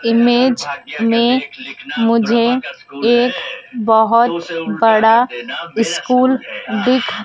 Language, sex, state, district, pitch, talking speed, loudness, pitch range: Hindi, female, Madhya Pradesh, Dhar, 235 Hz, 65 wpm, -15 LUFS, 225-250 Hz